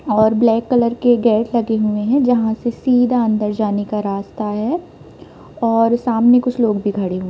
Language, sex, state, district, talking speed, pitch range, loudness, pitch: Hindi, female, Bihar, Gopalganj, 190 wpm, 210-240 Hz, -16 LUFS, 225 Hz